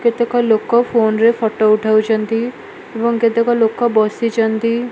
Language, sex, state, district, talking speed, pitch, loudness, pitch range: Odia, female, Odisha, Malkangiri, 110 wpm, 230 Hz, -15 LUFS, 220-235 Hz